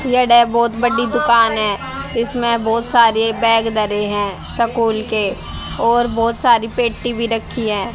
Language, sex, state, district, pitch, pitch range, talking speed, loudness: Hindi, female, Haryana, Charkhi Dadri, 230 Hz, 220-235 Hz, 145 wpm, -16 LUFS